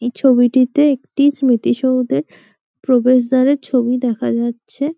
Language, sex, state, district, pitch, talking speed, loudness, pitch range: Bengali, female, West Bengal, Malda, 255 Hz, 110 wpm, -15 LUFS, 245-270 Hz